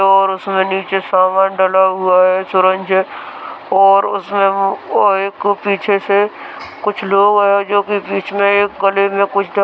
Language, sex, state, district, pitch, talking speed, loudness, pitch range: Hindi, male, Rajasthan, Churu, 195 Hz, 150 wpm, -14 LUFS, 190-200 Hz